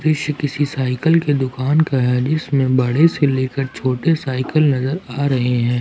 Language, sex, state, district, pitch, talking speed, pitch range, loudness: Hindi, male, Jharkhand, Ranchi, 135 Hz, 175 wpm, 130-150 Hz, -18 LUFS